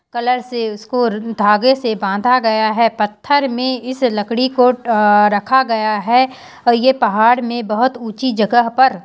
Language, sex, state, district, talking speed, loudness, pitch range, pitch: Hindi, female, Uttarakhand, Uttarkashi, 160 wpm, -15 LUFS, 220-255 Hz, 240 Hz